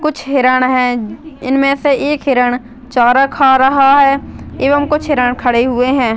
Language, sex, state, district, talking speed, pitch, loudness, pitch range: Hindi, female, Chhattisgarh, Jashpur, 165 wpm, 265 Hz, -12 LUFS, 245-280 Hz